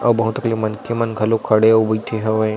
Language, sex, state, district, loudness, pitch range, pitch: Chhattisgarhi, male, Chhattisgarh, Sarguja, -18 LUFS, 110-115 Hz, 110 Hz